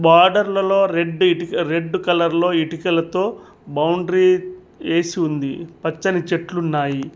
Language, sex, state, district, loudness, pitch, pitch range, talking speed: Telugu, male, Telangana, Mahabubabad, -19 LUFS, 170 Hz, 165-185 Hz, 100 wpm